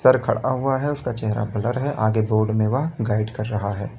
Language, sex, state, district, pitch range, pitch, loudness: Hindi, male, Uttar Pradesh, Lalitpur, 110-130 Hz, 110 Hz, -22 LUFS